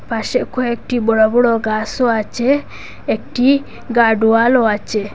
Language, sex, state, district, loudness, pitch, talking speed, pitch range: Bengali, female, Assam, Hailakandi, -16 LUFS, 235 Hz, 105 wpm, 220-250 Hz